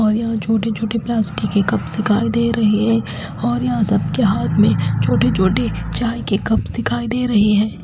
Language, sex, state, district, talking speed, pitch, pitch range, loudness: Hindi, female, Chhattisgarh, Raipur, 200 wpm, 215 Hz, 200-225 Hz, -18 LUFS